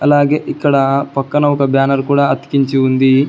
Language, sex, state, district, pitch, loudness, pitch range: Telugu, male, Telangana, Hyderabad, 140 Hz, -14 LUFS, 135-145 Hz